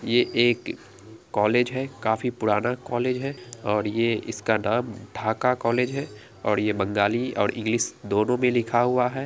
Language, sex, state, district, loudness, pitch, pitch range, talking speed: Angika, female, Bihar, Araria, -24 LUFS, 115 Hz, 105-125 Hz, 160 wpm